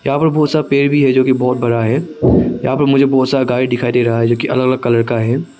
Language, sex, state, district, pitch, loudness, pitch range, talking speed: Hindi, male, Arunachal Pradesh, Papum Pare, 130 Hz, -14 LUFS, 120-140 Hz, 300 wpm